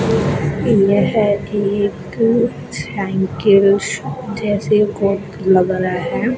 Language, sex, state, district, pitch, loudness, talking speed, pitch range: Hindi, female, Rajasthan, Bikaner, 200 Hz, -16 LUFS, 65 wpm, 190-210 Hz